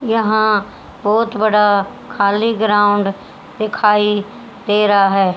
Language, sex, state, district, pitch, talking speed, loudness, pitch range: Hindi, female, Haryana, Charkhi Dadri, 210 Hz, 100 wpm, -15 LUFS, 205-220 Hz